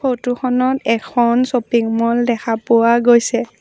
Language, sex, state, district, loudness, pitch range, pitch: Assamese, female, Assam, Sonitpur, -16 LUFS, 230-250 Hz, 240 Hz